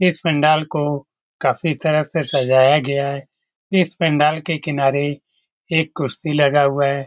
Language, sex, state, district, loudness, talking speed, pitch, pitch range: Hindi, male, Bihar, Lakhisarai, -18 LUFS, 150 wpm, 150 Hz, 140-160 Hz